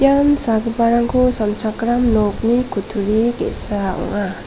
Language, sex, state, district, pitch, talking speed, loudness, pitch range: Garo, female, Meghalaya, West Garo Hills, 225 Hz, 95 wpm, -17 LUFS, 210-240 Hz